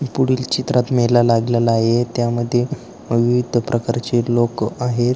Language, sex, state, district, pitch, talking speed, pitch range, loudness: Marathi, male, Maharashtra, Aurangabad, 120 Hz, 115 wpm, 120-125 Hz, -18 LUFS